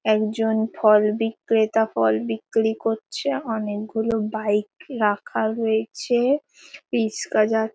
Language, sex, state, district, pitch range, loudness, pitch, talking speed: Bengali, female, West Bengal, Paschim Medinipur, 215-225 Hz, -22 LUFS, 220 Hz, 100 wpm